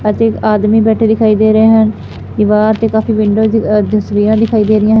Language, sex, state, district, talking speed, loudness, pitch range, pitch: Punjabi, female, Punjab, Fazilka, 215 wpm, -11 LUFS, 210-220 Hz, 215 Hz